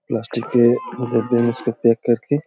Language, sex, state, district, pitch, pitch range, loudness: Hindi, male, Jharkhand, Jamtara, 120 Hz, 115-120 Hz, -19 LUFS